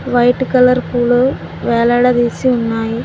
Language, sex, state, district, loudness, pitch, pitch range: Telugu, female, Telangana, Mahabubabad, -14 LUFS, 245 Hz, 235-250 Hz